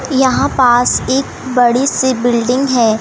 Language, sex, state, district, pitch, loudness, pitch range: Hindi, female, Madhya Pradesh, Umaria, 255 Hz, -13 LUFS, 245-265 Hz